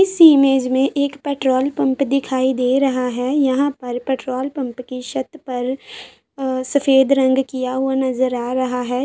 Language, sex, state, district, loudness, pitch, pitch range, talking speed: Hindi, female, Uttar Pradesh, Muzaffarnagar, -18 LUFS, 265 Hz, 255-275 Hz, 165 wpm